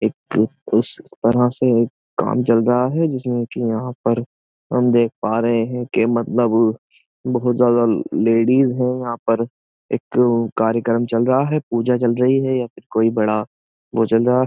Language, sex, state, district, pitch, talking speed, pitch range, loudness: Hindi, male, Uttar Pradesh, Jyotiba Phule Nagar, 120 Hz, 175 wpm, 115-125 Hz, -18 LUFS